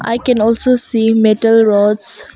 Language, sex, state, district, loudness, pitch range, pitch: English, female, Arunachal Pradesh, Longding, -12 LUFS, 215-235 Hz, 225 Hz